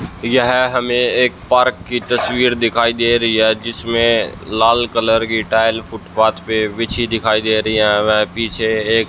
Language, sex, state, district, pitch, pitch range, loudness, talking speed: Hindi, male, Haryana, Rohtak, 115 Hz, 110-120 Hz, -15 LUFS, 165 wpm